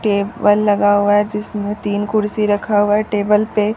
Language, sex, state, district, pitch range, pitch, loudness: Hindi, female, Bihar, Katihar, 205-210 Hz, 205 Hz, -16 LUFS